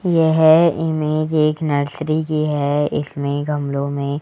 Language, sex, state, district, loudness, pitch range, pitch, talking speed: Hindi, female, Rajasthan, Jaipur, -18 LUFS, 145-160 Hz, 155 Hz, 130 wpm